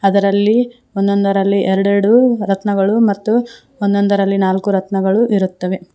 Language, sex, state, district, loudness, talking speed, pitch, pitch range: Kannada, female, Karnataka, Koppal, -15 LUFS, 90 wpm, 200 Hz, 195-215 Hz